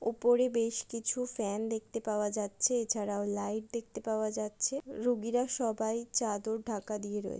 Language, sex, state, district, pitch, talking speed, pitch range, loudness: Bengali, female, West Bengal, Jalpaiguri, 225 Hz, 145 wpm, 210-235 Hz, -33 LUFS